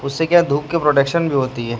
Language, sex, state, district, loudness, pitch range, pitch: Hindi, male, Chhattisgarh, Raipur, -17 LUFS, 135-165 Hz, 145 Hz